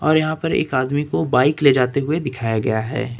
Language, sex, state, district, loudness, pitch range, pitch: Hindi, male, Uttar Pradesh, Lucknow, -19 LUFS, 125-155 Hz, 135 Hz